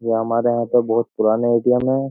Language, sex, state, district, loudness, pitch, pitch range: Hindi, male, Uttar Pradesh, Jyotiba Phule Nagar, -18 LUFS, 120 Hz, 115-125 Hz